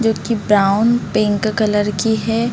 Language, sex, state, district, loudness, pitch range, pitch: Hindi, female, Chhattisgarh, Bilaspur, -16 LUFS, 205-225 Hz, 215 Hz